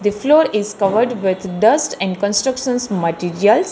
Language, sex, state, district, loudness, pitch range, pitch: English, female, Telangana, Hyderabad, -16 LUFS, 195-245 Hz, 210 Hz